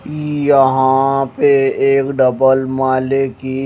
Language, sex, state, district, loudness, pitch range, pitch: Hindi, male, Himachal Pradesh, Shimla, -14 LUFS, 130-135 Hz, 135 Hz